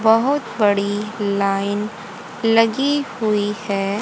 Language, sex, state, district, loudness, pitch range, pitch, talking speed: Hindi, female, Haryana, Rohtak, -19 LUFS, 200-225 Hz, 210 Hz, 90 wpm